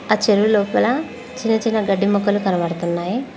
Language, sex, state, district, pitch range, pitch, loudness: Telugu, female, Telangana, Mahabubabad, 195-240 Hz, 210 Hz, -18 LUFS